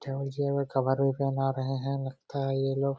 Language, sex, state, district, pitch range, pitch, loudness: Hindi, male, Jharkhand, Jamtara, 135-140 Hz, 135 Hz, -30 LUFS